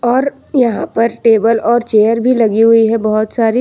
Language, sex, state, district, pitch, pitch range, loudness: Hindi, female, Jharkhand, Ranchi, 230 Hz, 225-240 Hz, -12 LUFS